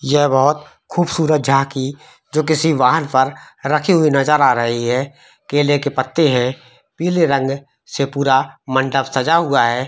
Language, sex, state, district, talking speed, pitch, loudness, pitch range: Hindi, male, Jharkhand, Jamtara, 160 wpm, 140 Hz, -16 LUFS, 130-155 Hz